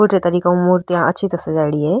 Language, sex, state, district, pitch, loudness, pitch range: Rajasthani, female, Rajasthan, Nagaur, 175 Hz, -16 LUFS, 165-180 Hz